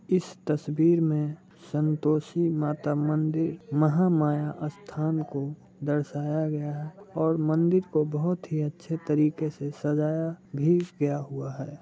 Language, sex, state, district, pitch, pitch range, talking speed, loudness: Hindi, male, Bihar, Muzaffarpur, 155 Hz, 150-165 Hz, 120 wpm, -27 LUFS